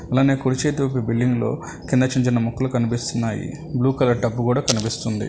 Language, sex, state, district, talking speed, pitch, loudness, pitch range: Telugu, male, Telangana, Hyderabad, 170 wpm, 125 Hz, -21 LUFS, 120-135 Hz